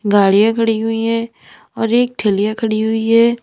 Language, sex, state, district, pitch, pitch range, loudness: Hindi, female, Uttar Pradesh, Lalitpur, 225 Hz, 215-230 Hz, -15 LUFS